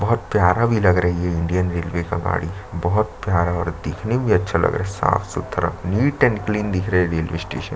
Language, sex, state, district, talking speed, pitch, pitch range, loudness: Hindi, male, Chhattisgarh, Sukma, 240 wpm, 90 Hz, 85-105 Hz, -20 LUFS